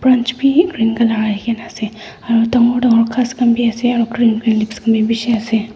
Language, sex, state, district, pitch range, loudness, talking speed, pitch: Nagamese, female, Nagaland, Dimapur, 225-240 Hz, -15 LUFS, 210 wpm, 230 Hz